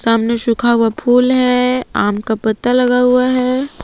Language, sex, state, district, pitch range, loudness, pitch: Hindi, female, Jharkhand, Palamu, 230-250 Hz, -14 LUFS, 245 Hz